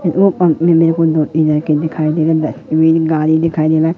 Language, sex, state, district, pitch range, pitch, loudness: Hindi, male, Madhya Pradesh, Katni, 155-165 Hz, 160 Hz, -13 LUFS